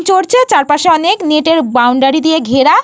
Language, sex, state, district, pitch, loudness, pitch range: Bengali, female, Jharkhand, Jamtara, 315 Hz, -10 LUFS, 280-375 Hz